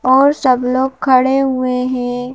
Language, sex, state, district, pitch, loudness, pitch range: Hindi, female, Madhya Pradesh, Bhopal, 255 Hz, -14 LUFS, 250-265 Hz